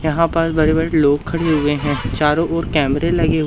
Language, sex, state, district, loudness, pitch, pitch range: Hindi, male, Madhya Pradesh, Umaria, -17 LUFS, 155 Hz, 145-165 Hz